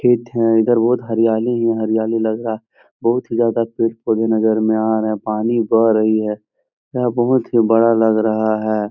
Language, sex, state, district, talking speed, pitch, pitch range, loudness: Hindi, male, Bihar, Jahanabad, 195 wpm, 115 Hz, 110-115 Hz, -17 LUFS